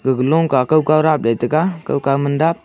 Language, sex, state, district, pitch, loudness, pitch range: Wancho, male, Arunachal Pradesh, Longding, 155 Hz, -16 LUFS, 130-160 Hz